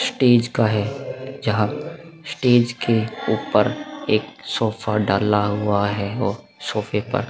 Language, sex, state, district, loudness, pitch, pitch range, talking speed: Hindi, male, Bihar, Vaishali, -21 LUFS, 115 Hz, 105-125 Hz, 130 wpm